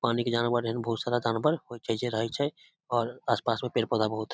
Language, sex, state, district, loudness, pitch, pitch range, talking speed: Maithili, male, Bihar, Samastipur, -29 LUFS, 120 Hz, 115-120 Hz, 250 wpm